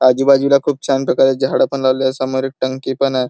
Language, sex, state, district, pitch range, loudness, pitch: Marathi, male, Maharashtra, Chandrapur, 130-135 Hz, -16 LUFS, 135 Hz